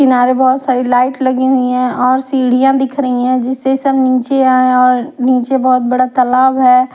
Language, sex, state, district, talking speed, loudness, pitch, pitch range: Hindi, female, Haryana, Rohtak, 190 wpm, -12 LUFS, 255 Hz, 250-265 Hz